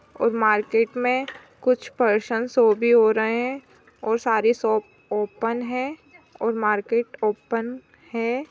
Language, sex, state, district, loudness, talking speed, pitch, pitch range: Hindi, female, Maharashtra, Chandrapur, -23 LUFS, 115 wpm, 230 Hz, 220-245 Hz